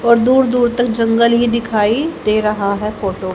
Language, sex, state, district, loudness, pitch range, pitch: Hindi, female, Haryana, Jhajjar, -15 LUFS, 210-240 Hz, 230 Hz